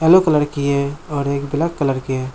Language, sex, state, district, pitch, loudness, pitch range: Hindi, male, Jharkhand, Jamtara, 140 Hz, -18 LUFS, 140-155 Hz